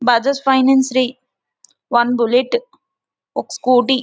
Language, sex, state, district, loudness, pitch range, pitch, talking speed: Telugu, female, Andhra Pradesh, Visakhapatnam, -16 LUFS, 245-275 Hz, 260 Hz, 105 wpm